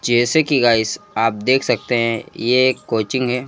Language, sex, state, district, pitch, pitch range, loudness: Hindi, male, Madhya Pradesh, Bhopal, 120 Hz, 115-130 Hz, -17 LUFS